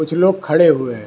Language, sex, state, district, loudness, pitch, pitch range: Hindi, male, Karnataka, Bangalore, -14 LUFS, 160 Hz, 135-175 Hz